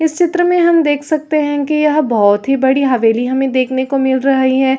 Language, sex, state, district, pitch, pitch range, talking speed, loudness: Hindi, female, Chhattisgarh, Raigarh, 275 Hz, 260-305 Hz, 240 wpm, -13 LUFS